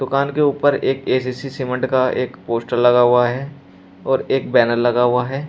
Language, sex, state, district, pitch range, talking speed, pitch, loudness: Hindi, male, Uttar Pradesh, Shamli, 120-135 Hz, 195 wpm, 130 Hz, -18 LUFS